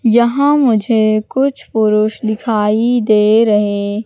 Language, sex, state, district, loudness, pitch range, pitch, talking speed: Hindi, female, Madhya Pradesh, Katni, -13 LUFS, 215-240 Hz, 220 Hz, 105 wpm